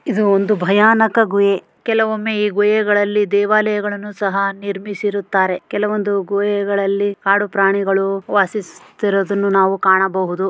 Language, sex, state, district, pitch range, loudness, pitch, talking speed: Kannada, female, Karnataka, Raichur, 195-210 Hz, -16 LUFS, 200 Hz, 95 wpm